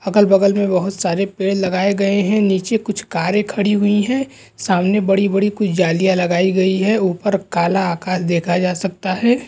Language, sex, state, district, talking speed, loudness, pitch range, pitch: Hindi, male, Maharashtra, Nagpur, 175 wpm, -17 LUFS, 185-205 Hz, 195 Hz